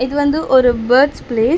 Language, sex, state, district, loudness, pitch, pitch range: Tamil, female, Tamil Nadu, Chennai, -14 LUFS, 260 Hz, 245-285 Hz